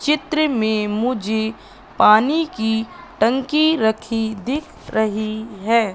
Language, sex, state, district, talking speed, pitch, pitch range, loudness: Hindi, female, Madhya Pradesh, Katni, 100 wpm, 225 Hz, 220-290 Hz, -19 LUFS